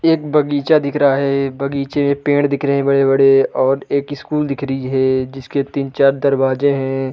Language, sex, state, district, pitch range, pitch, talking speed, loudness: Hindi, male, Uttar Pradesh, Budaun, 135-145 Hz, 140 Hz, 185 wpm, -16 LUFS